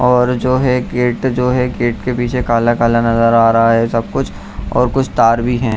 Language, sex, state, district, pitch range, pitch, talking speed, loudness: Hindi, male, Bihar, Jamui, 115-125 Hz, 120 Hz, 220 wpm, -14 LUFS